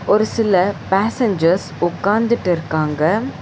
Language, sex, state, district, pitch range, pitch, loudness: Tamil, female, Tamil Nadu, Chennai, 170-215 Hz, 195 Hz, -17 LUFS